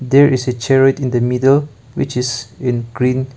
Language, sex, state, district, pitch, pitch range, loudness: English, male, Nagaland, Kohima, 130 Hz, 125-135 Hz, -15 LUFS